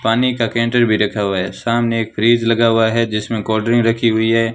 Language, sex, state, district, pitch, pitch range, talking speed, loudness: Hindi, male, Rajasthan, Bikaner, 115 Hz, 110-115 Hz, 250 wpm, -16 LUFS